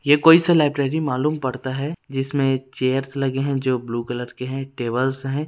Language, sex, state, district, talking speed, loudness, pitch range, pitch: Hindi, male, Chhattisgarh, Rajnandgaon, 195 wpm, -21 LUFS, 130-145 Hz, 135 Hz